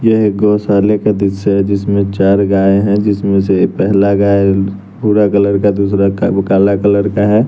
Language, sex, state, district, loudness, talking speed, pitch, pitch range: Hindi, male, Bihar, West Champaran, -12 LUFS, 175 wpm, 100 Hz, 100-105 Hz